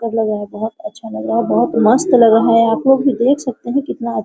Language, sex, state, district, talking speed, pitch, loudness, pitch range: Hindi, female, Bihar, Araria, 295 wpm, 230 Hz, -15 LUFS, 220-260 Hz